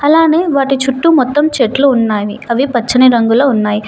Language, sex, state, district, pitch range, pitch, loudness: Telugu, female, Telangana, Mahabubabad, 235-290 Hz, 260 Hz, -11 LUFS